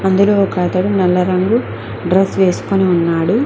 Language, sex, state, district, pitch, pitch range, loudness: Telugu, female, Telangana, Mahabubabad, 190 Hz, 180-195 Hz, -14 LUFS